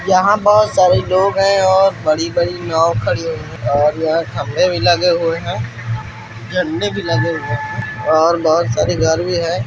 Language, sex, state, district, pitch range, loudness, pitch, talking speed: Hindi, male, Bihar, Darbhanga, 120-175 Hz, -15 LUFS, 160 Hz, 175 wpm